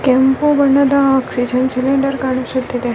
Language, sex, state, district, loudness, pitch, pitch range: Kannada, female, Karnataka, Bellary, -15 LUFS, 265 Hz, 255-275 Hz